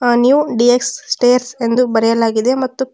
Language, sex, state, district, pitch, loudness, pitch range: Kannada, female, Karnataka, Koppal, 245 Hz, -14 LUFS, 235-260 Hz